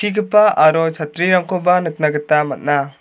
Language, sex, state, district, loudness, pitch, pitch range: Garo, male, Meghalaya, South Garo Hills, -15 LUFS, 165 Hz, 150-185 Hz